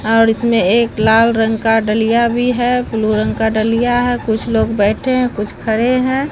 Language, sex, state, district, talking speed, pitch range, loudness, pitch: Hindi, female, Bihar, Katihar, 200 wpm, 220-245 Hz, -14 LUFS, 225 Hz